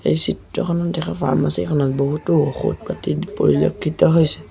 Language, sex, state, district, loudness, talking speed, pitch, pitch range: Assamese, male, Assam, Sonitpur, -19 LUFS, 120 wpm, 155 Hz, 140-170 Hz